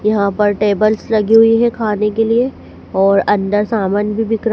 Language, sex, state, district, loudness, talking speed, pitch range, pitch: Hindi, female, Madhya Pradesh, Dhar, -14 LUFS, 200 wpm, 205-225 Hz, 210 Hz